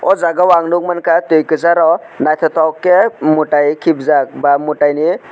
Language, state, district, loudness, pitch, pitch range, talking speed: Kokborok, Tripura, West Tripura, -13 LUFS, 160 Hz, 155-175 Hz, 170 wpm